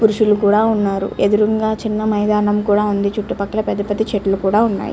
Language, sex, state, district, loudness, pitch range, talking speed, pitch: Telugu, female, Andhra Pradesh, Chittoor, -17 LUFS, 205-215 Hz, 180 wpm, 210 Hz